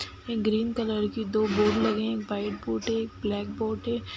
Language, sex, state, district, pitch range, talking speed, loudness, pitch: Hindi, female, Bihar, Sitamarhi, 210-220 Hz, 230 wpm, -28 LUFS, 215 Hz